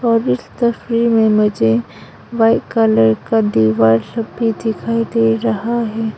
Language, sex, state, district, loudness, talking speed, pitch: Hindi, female, Arunachal Pradesh, Longding, -15 LUFS, 105 wpm, 220 Hz